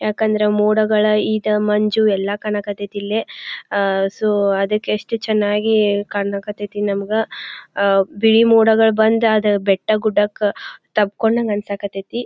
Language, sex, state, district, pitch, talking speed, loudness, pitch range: Kannada, female, Karnataka, Belgaum, 210 Hz, 110 wpm, -17 LUFS, 205-215 Hz